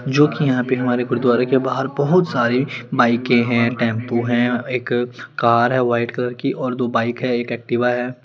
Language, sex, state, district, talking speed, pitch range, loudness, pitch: Hindi, male, Chandigarh, Chandigarh, 190 wpm, 120-130 Hz, -19 LUFS, 125 Hz